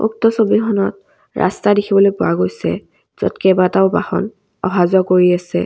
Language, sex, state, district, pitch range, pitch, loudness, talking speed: Assamese, female, Assam, Kamrup Metropolitan, 180-205 Hz, 190 Hz, -15 LUFS, 140 wpm